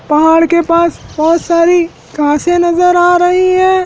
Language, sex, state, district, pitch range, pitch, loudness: Hindi, male, Madhya Pradesh, Dhar, 330-355 Hz, 340 Hz, -10 LUFS